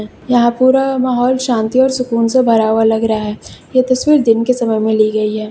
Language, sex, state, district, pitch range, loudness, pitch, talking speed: Hindi, female, Uttar Pradesh, Lucknow, 220-255 Hz, -13 LUFS, 235 Hz, 230 wpm